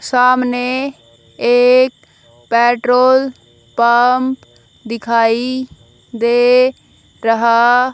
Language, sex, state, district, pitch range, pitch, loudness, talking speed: Hindi, female, Haryana, Jhajjar, 235-255 Hz, 245 Hz, -13 LUFS, 55 wpm